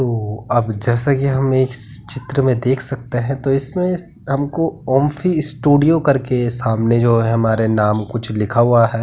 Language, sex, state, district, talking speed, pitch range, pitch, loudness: Hindi, male, Uttarakhand, Tehri Garhwal, 175 wpm, 115-140 Hz, 130 Hz, -17 LUFS